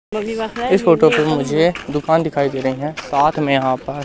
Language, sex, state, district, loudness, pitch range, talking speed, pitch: Hindi, male, Madhya Pradesh, Katni, -17 LUFS, 140-170 Hz, 190 wpm, 155 Hz